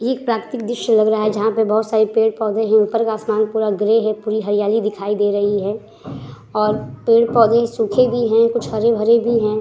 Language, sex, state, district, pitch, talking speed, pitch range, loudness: Hindi, female, Uttar Pradesh, Hamirpur, 220 Hz, 210 wpm, 215-230 Hz, -17 LUFS